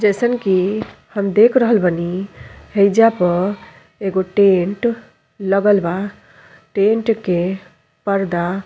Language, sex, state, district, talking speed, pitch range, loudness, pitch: Bhojpuri, female, Uttar Pradesh, Ghazipur, 110 wpm, 185-215 Hz, -17 LUFS, 195 Hz